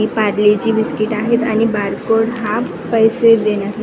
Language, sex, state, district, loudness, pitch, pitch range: Marathi, female, Maharashtra, Washim, -15 LUFS, 220 Hz, 210-225 Hz